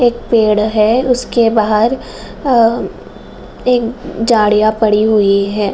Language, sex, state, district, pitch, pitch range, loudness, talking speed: Hindi, female, Bihar, Saran, 225 Hz, 215-240 Hz, -13 LUFS, 125 wpm